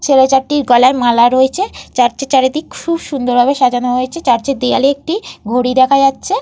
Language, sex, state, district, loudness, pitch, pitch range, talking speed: Bengali, female, Jharkhand, Jamtara, -13 LUFS, 265 Hz, 250-285 Hz, 185 wpm